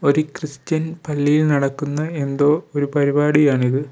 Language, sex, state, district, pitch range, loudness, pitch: Malayalam, male, Kerala, Kollam, 140-155 Hz, -19 LUFS, 145 Hz